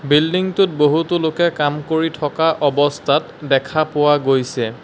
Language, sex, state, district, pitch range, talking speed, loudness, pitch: Assamese, male, Assam, Sonitpur, 145-160 Hz, 125 wpm, -17 LUFS, 150 Hz